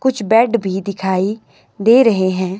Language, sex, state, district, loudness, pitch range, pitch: Hindi, male, Himachal Pradesh, Shimla, -15 LUFS, 190-230 Hz, 200 Hz